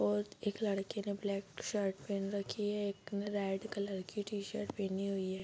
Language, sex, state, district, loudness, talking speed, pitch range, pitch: Hindi, female, Bihar, Bhagalpur, -39 LUFS, 200 wpm, 195-205 Hz, 200 Hz